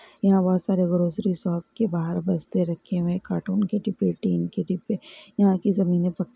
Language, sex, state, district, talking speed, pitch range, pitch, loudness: Hindi, female, Karnataka, Belgaum, 200 wpm, 175-200 Hz, 185 Hz, -24 LUFS